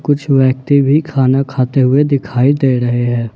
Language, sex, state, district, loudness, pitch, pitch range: Hindi, male, Jharkhand, Ranchi, -13 LUFS, 135 Hz, 125-140 Hz